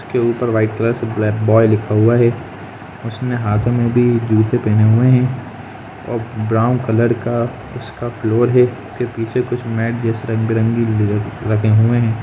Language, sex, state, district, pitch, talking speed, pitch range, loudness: Hindi, male, Jharkhand, Jamtara, 115 Hz, 160 wpm, 110-120 Hz, -16 LUFS